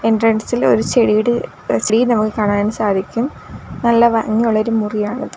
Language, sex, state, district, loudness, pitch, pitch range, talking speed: Malayalam, female, Kerala, Kollam, -16 LUFS, 225 Hz, 215-235 Hz, 110 wpm